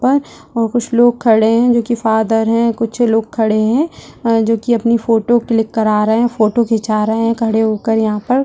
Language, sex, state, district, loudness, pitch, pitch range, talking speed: Hindi, female, Bihar, Purnia, -14 LUFS, 230 Hz, 220-235 Hz, 225 wpm